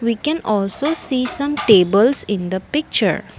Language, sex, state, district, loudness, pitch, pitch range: English, female, Assam, Kamrup Metropolitan, -17 LUFS, 245 Hz, 200-295 Hz